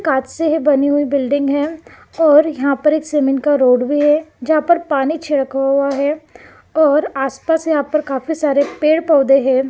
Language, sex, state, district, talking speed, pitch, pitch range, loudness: Hindi, female, Maharashtra, Gondia, 200 wpm, 290 Hz, 275-310 Hz, -15 LUFS